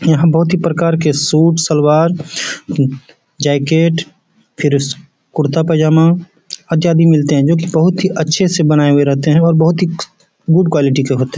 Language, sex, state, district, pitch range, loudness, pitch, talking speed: Hindi, male, Bihar, Bhagalpur, 150-170 Hz, -13 LUFS, 160 Hz, 180 wpm